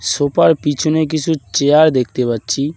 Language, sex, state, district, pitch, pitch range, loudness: Bengali, male, West Bengal, Cooch Behar, 145 Hz, 130-155 Hz, -15 LUFS